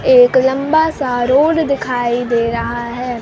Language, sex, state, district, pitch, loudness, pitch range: Hindi, female, Bihar, Kaimur, 250 Hz, -15 LUFS, 240-275 Hz